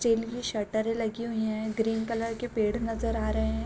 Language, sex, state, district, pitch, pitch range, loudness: Hindi, female, Bihar, Sitamarhi, 225 Hz, 215-230 Hz, -30 LUFS